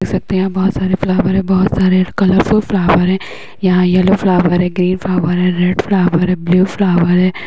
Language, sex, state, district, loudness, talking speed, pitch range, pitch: Hindi, female, Uttar Pradesh, Hamirpur, -13 LUFS, 185 wpm, 180-190 Hz, 185 Hz